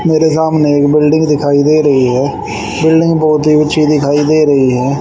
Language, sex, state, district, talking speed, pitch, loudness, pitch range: Hindi, male, Haryana, Rohtak, 190 wpm, 150 Hz, -10 LUFS, 145-155 Hz